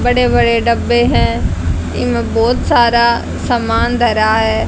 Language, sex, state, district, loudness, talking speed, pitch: Hindi, female, Haryana, Charkhi Dadri, -13 LUFS, 130 wpm, 230 Hz